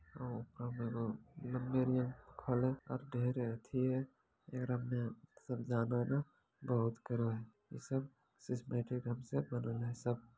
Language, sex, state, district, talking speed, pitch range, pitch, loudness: Maithili, male, Bihar, Madhepura, 125 wpm, 120-130 Hz, 125 Hz, -40 LUFS